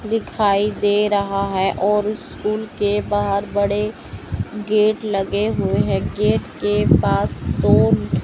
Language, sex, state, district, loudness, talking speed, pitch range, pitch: Hindi, male, Chandigarh, Chandigarh, -19 LUFS, 125 wpm, 200-210 Hz, 205 Hz